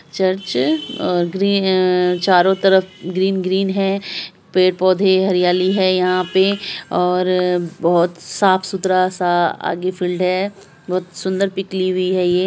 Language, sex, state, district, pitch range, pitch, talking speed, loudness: Hindi, female, Bihar, Araria, 180-190 Hz, 185 Hz, 135 wpm, -17 LUFS